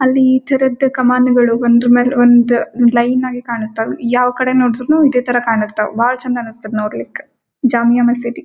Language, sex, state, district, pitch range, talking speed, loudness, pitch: Kannada, female, Karnataka, Gulbarga, 235-255 Hz, 150 wpm, -14 LUFS, 245 Hz